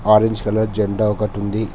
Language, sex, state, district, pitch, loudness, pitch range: Telugu, male, Telangana, Hyderabad, 105 Hz, -19 LUFS, 105-110 Hz